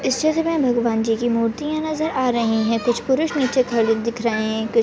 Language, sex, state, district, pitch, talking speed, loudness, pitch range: Hindi, female, Maharashtra, Chandrapur, 240 Hz, 210 wpm, -20 LUFS, 230-280 Hz